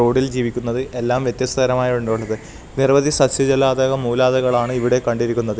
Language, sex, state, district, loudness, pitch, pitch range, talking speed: Malayalam, male, Kerala, Kasaragod, -18 LUFS, 125 Hz, 120-130 Hz, 105 wpm